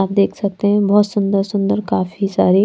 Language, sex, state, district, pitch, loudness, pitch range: Hindi, female, Bihar, Patna, 200 Hz, -17 LUFS, 195-205 Hz